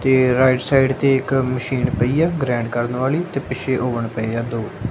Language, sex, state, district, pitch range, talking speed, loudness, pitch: Punjabi, male, Punjab, Kapurthala, 120-135 Hz, 210 wpm, -19 LUFS, 130 Hz